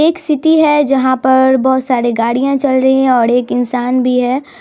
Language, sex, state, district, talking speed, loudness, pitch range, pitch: Hindi, female, Bihar, Araria, 210 wpm, -12 LUFS, 245-275 Hz, 260 Hz